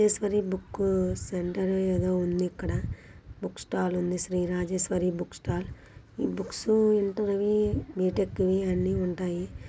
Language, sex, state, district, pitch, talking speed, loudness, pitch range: Telugu, female, Andhra Pradesh, Guntur, 185 Hz, 130 wpm, -28 LUFS, 180-200 Hz